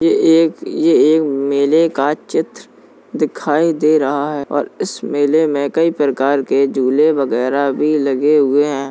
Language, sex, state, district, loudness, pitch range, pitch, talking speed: Hindi, male, Uttar Pradesh, Jalaun, -15 LUFS, 140-160 Hz, 145 Hz, 160 wpm